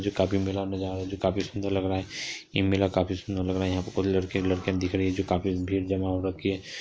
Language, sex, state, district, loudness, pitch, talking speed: Hindi, female, Bihar, Purnia, -28 LUFS, 95 Hz, 280 wpm